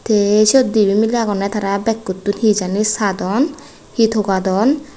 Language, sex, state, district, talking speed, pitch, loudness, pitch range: Chakma, female, Tripura, West Tripura, 145 wpm, 215 Hz, -16 LUFS, 200-225 Hz